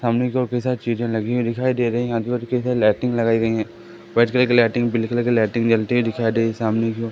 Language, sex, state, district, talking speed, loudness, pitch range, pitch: Hindi, male, Madhya Pradesh, Katni, 295 wpm, -20 LUFS, 115-120 Hz, 120 Hz